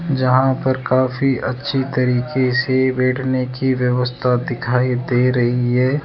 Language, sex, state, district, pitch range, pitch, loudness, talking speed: Hindi, male, Rajasthan, Jaipur, 125-130 Hz, 130 Hz, -18 LUFS, 130 wpm